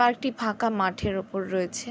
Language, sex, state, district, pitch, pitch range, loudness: Bengali, female, West Bengal, Jhargram, 215 Hz, 190-240 Hz, -27 LUFS